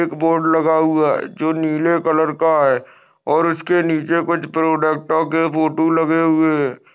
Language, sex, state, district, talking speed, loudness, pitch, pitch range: Hindi, male, Maharashtra, Aurangabad, 165 wpm, -17 LUFS, 160 Hz, 155-165 Hz